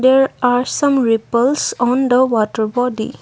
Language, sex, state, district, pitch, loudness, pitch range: English, female, Assam, Kamrup Metropolitan, 245 Hz, -16 LUFS, 230-260 Hz